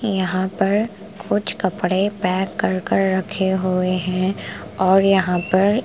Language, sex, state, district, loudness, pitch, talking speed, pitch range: Hindi, female, Punjab, Pathankot, -20 LUFS, 190 Hz, 145 wpm, 185-200 Hz